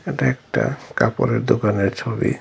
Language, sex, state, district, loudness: Bengali, male, Tripura, Dhalai, -21 LUFS